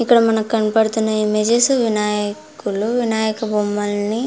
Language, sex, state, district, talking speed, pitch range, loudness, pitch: Telugu, female, Andhra Pradesh, Anantapur, 110 wpm, 210-230 Hz, -18 LUFS, 220 Hz